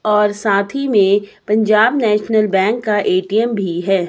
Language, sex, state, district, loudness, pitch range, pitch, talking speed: Hindi, female, Himachal Pradesh, Shimla, -15 LUFS, 200-215 Hz, 210 Hz, 160 wpm